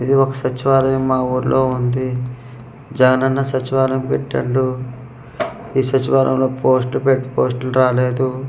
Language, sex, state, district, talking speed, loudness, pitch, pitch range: Telugu, male, Andhra Pradesh, Manyam, 115 wpm, -17 LUFS, 130 Hz, 125-135 Hz